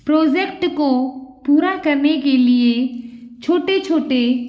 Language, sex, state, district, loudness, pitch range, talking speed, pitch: Hindi, female, Bihar, Begusarai, -17 LUFS, 250-315 Hz, 105 wpm, 285 Hz